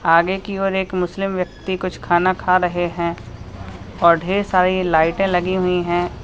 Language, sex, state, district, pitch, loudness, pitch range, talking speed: Hindi, male, Uttar Pradesh, Lalitpur, 180 Hz, -19 LUFS, 170-185 Hz, 175 wpm